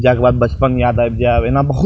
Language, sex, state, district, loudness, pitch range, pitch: Maithili, male, Bihar, Purnia, -14 LUFS, 120-135 Hz, 125 Hz